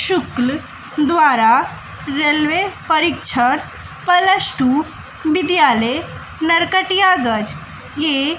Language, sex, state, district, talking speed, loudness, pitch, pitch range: Hindi, female, Bihar, West Champaran, 65 wpm, -15 LUFS, 315 Hz, 285-360 Hz